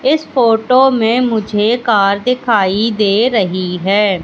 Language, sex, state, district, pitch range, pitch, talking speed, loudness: Hindi, female, Madhya Pradesh, Katni, 200-250 Hz, 225 Hz, 125 wpm, -13 LUFS